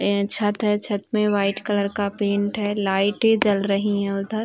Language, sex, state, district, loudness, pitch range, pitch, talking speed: Hindi, female, Uttar Pradesh, Varanasi, -22 LUFS, 200-210 Hz, 205 Hz, 200 wpm